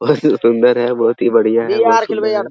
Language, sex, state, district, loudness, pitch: Hindi, male, Bihar, Araria, -14 LUFS, 125 Hz